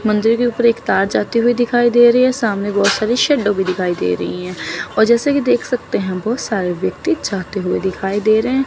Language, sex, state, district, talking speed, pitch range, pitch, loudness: Hindi, female, Chandigarh, Chandigarh, 240 wpm, 195-240 Hz, 220 Hz, -16 LUFS